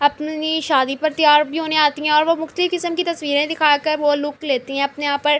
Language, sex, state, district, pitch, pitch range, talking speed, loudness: Urdu, female, Andhra Pradesh, Anantapur, 300 Hz, 290-315 Hz, 255 wpm, -18 LUFS